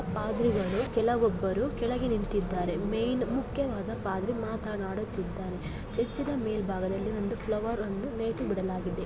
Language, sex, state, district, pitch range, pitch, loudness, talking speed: Kannada, female, Karnataka, Belgaum, 195-230 Hz, 215 Hz, -31 LUFS, 105 wpm